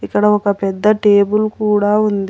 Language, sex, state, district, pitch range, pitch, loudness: Telugu, female, Telangana, Hyderabad, 200-210 Hz, 210 Hz, -14 LUFS